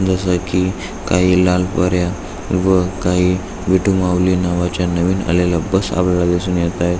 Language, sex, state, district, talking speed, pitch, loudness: Marathi, male, Maharashtra, Aurangabad, 145 wpm, 90 Hz, -16 LUFS